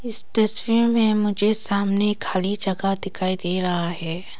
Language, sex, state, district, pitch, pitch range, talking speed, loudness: Hindi, female, Arunachal Pradesh, Papum Pare, 200 Hz, 185-215 Hz, 150 wpm, -19 LUFS